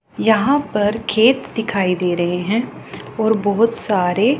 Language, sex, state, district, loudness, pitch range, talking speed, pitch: Hindi, female, Punjab, Pathankot, -17 LUFS, 195-230 Hz, 135 wpm, 220 Hz